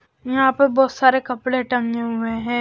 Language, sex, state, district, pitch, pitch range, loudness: Hindi, male, Maharashtra, Washim, 255 Hz, 235-265 Hz, -19 LUFS